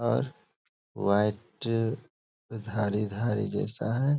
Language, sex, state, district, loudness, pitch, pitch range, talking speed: Hindi, male, Bihar, Begusarai, -30 LUFS, 105 Hz, 105-115 Hz, 70 wpm